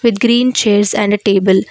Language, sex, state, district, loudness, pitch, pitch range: English, female, Karnataka, Bangalore, -12 LUFS, 210 Hz, 200-235 Hz